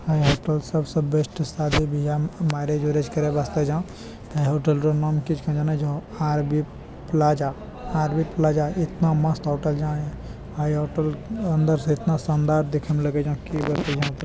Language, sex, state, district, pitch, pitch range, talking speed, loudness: Maithili, male, Bihar, Bhagalpur, 150 Hz, 150-155 Hz, 180 wpm, -24 LUFS